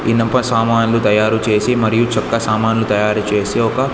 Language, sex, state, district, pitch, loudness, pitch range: Telugu, male, Andhra Pradesh, Sri Satya Sai, 115 Hz, -15 LUFS, 105-115 Hz